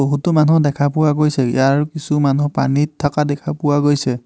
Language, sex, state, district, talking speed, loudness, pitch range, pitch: Assamese, male, Assam, Hailakandi, 185 wpm, -16 LUFS, 140-150 Hz, 145 Hz